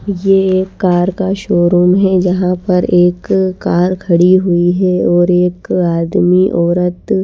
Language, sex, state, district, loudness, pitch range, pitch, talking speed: Hindi, female, Chhattisgarh, Raipur, -12 LUFS, 175-190 Hz, 180 Hz, 140 wpm